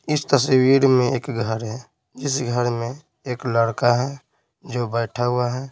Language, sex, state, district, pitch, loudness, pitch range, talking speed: Hindi, male, Bihar, Patna, 125 Hz, -21 LUFS, 120-135 Hz, 170 wpm